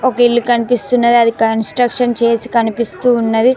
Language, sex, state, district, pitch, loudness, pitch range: Telugu, female, Telangana, Mahabubabad, 240 Hz, -13 LUFS, 230-245 Hz